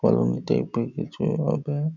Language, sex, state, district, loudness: Bengali, male, West Bengal, Jhargram, -25 LUFS